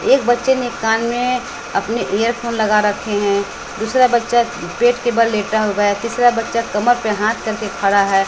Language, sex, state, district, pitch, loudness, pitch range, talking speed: Hindi, female, Bihar, West Champaran, 230 Hz, -17 LUFS, 210-240 Hz, 195 wpm